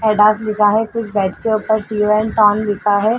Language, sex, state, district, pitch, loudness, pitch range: Hindi, female, Uttar Pradesh, Jalaun, 215 Hz, -16 LUFS, 210-220 Hz